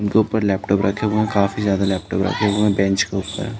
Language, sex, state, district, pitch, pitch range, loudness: Hindi, male, Uttar Pradesh, Jalaun, 100 Hz, 95-105 Hz, -19 LUFS